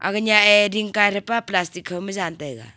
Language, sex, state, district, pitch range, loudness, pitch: Wancho, female, Arunachal Pradesh, Longding, 175-210 Hz, -19 LUFS, 195 Hz